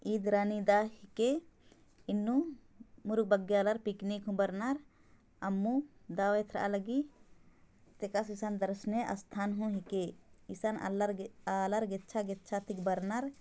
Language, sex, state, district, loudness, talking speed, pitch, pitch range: Sadri, female, Chhattisgarh, Jashpur, -35 LUFS, 135 wpm, 210 Hz, 200-220 Hz